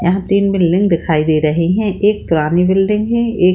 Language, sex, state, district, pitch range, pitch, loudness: Hindi, female, Bihar, Saran, 170-205 Hz, 185 Hz, -14 LUFS